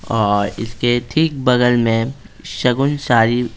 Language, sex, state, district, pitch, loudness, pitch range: Hindi, male, Bihar, Patna, 120 Hz, -17 LUFS, 115-130 Hz